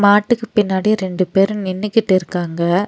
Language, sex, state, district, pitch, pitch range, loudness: Tamil, female, Tamil Nadu, Nilgiris, 195 Hz, 185-210 Hz, -17 LUFS